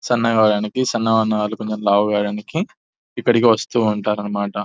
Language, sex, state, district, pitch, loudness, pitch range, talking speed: Telugu, male, Telangana, Nalgonda, 110 Hz, -18 LUFS, 105-115 Hz, 155 wpm